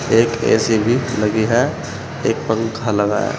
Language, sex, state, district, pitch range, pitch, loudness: Hindi, male, Uttar Pradesh, Saharanpur, 110-120 Hz, 115 Hz, -18 LUFS